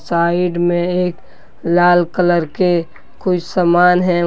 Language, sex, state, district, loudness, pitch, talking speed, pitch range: Hindi, male, Jharkhand, Deoghar, -15 LUFS, 175 Hz, 125 wpm, 170-180 Hz